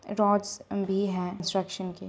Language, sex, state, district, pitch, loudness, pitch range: Hindi, female, Bihar, Saran, 195 Hz, -29 LUFS, 185-200 Hz